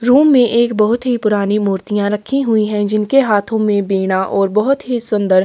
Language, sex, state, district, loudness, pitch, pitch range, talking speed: Hindi, female, Chhattisgarh, Kabirdham, -15 LUFS, 215 Hz, 205-240 Hz, 200 wpm